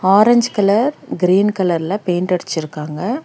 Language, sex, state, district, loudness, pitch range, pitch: Tamil, female, Karnataka, Bangalore, -16 LUFS, 175-215 Hz, 190 Hz